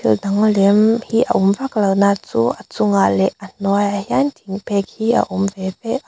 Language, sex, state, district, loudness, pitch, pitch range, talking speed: Mizo, female, Mizoram, Aizawl, -17 LUFS, 200 Hz, 195-220 Hz, 235 wpm